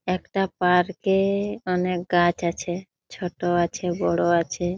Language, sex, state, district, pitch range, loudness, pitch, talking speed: Bengali, female, West Bengal, Jalpaiguri, 175-185 Hz, -24 LUFS, 180 Hz, 140 wpm